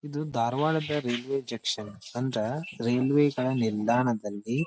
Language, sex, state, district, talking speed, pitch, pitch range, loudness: Kannada, male, Karnataka, Dharwad, 90 wpm, 125 Hz, 115-145 Hz, -28 LUFS